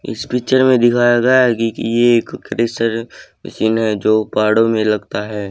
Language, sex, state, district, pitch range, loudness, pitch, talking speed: Hindi, male, Haryana, Charkhi Dadri, 110-120 Hz, -15 LUFS, 115 Hz, 195 wpm